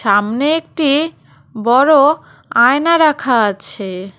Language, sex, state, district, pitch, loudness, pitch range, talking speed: Bengali, female, West Bengal, Cooch Behar, 255 Hz, -14 LUFS, 205-305 Hz, 85 wpm